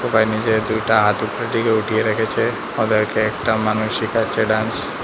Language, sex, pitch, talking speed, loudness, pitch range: Bengali, male, 110 Hz, 165 wpm, -19 LUFS, 110-115 Hz